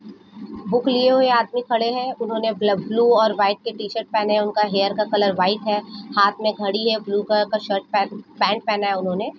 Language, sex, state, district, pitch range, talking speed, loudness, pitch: Hindi, female, Jharkhand, Jamtara, 205-230 Hz, 205 wpm, -20 LUFS, 215 Hz